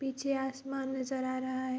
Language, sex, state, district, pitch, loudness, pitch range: Hindi, female, Bihar, Vaishali, 265 Hz, -35 LUFS, 260-270 Hz